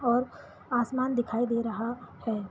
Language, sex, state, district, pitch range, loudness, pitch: Hindi, female, Jharkhand, Sahebganj, 230-245 Hz, -30 LUFS, 240 Hz